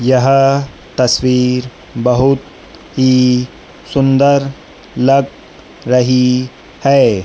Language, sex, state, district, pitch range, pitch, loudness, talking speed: Hindi, male, Madhya Pradesh, Dhar, 125-135 Hz, 130 Hz, -13 LUFS, 65 wpm